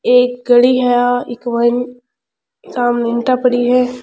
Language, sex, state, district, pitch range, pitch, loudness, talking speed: Rajasthani, female, Rajasthan, Churu, 245-250 Hz, 245 Hz, -14 LUFS, 150 wpm